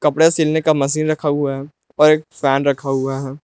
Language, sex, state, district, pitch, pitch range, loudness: Hindi, male, Jharkhand, Palamu, 145 Hz, 135-155 Hz, -17 LUFS